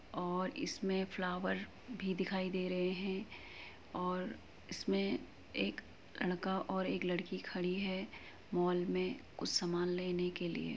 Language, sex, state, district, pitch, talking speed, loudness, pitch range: Hindi, female, Uttar Pradesh, Muzaffarnagar, 180 Hz, 130 wpm, -39 LUFS, 180-190 Hz